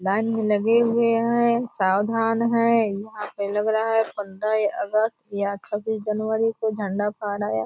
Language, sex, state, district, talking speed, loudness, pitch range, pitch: Hindi, female, Bihar, Purnia, 165 wpm, -23 LUFS, 205-225 Hz, 215 Hz